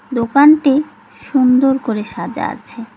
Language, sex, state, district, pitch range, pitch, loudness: Bengali, female, West Bengal, Cooch Behar, 230-275 Hz, 260 Hz, -14 LUFS